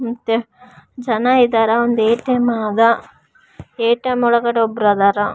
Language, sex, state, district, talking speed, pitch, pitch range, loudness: Kannada, female, Karnataka, Raichur, 155 wpm, 235 Hz, 225-245 Hz, -16 LUFS